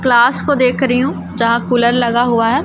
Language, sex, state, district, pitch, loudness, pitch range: Hindi, female, Chhattisgarh, Raipur, 245 Hz, -14 LUFS, 235-255 Hz